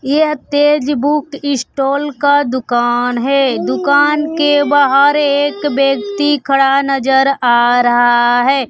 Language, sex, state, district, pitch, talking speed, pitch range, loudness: Hindi, female, Bihar, Kaimur, 275 Hz, 115 wpm, 255-290 Hz, -13 LUFS